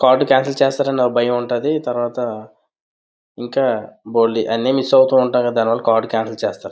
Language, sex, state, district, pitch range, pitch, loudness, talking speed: Telugu, male, Andhra Pradesh, Visakhapatnam, 115-130 Hz, 120 Hz, -17 LUFS, 145 wpm